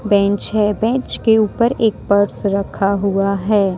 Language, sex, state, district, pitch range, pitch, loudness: Hindi, female, Jharkhand, Ranchi, 200-220 Hz, 205 Hz, -16 LUFS